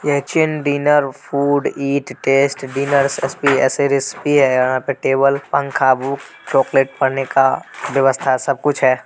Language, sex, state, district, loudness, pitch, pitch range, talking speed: Hindi, male, Bihar, Muzaffarpur, -17 LUFS, 140 Hz, 135-145 Hz, 105 wpm